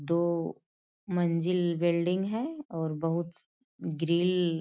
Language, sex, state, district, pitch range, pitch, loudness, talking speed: Hindi, female, Bihar, Bhagalpur, 165-180 Hz, 170 Hz, -30 LUFS, 105 wpm